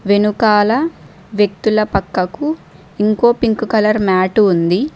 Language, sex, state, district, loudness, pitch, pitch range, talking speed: Telugu, female, Telangana, Mahabubabad, -15 LUFS, 210 Hz, 190-225 Hz, 95 wpm